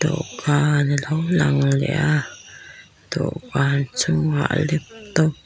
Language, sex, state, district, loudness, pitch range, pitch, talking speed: Mizo, female, Mizoram, Aizawl, -21 LUFS, 145-160 Hz, 150 Hz, 100 wpm